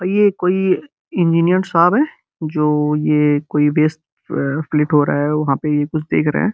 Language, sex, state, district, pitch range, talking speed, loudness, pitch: Hindi, male, Uttar Pradesh, Gorakhpur, 150-180 Hz, 185 wpm, -17 LUFS, 155 Hz